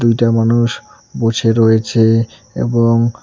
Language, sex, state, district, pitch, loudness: Bengali, male, West Bengal, Cooch Behar, 115 Hz, -14 LUFS